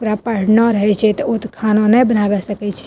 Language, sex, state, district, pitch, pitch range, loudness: Maithili, female, Bihar, Madhepura, 215 Hz, 205-230 Hz, -15 LUFS